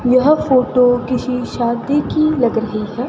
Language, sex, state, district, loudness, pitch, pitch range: Hindi, female, Rajasthan, Bikaner, -16 LUFS, 250 Hz, 240-265 Hz